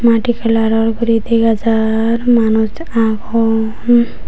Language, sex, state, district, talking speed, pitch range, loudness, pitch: Chakma, female, Tripura, Unakoti, 100 wpm, 220-235 Hz, -14 LUFS, 225 Hz